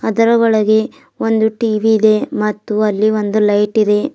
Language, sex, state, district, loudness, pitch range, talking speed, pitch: Kannada, female, Karnataka, Bidar, -14 LUFS, 210-220 Hz, 145 wpm, 215 Hz